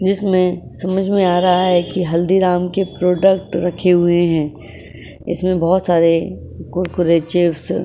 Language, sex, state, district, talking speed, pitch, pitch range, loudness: Hindi, female, Maharashtra, Chandrapur, 145 wpm, 175 Hz, 170-185 Hz, -16 LUFS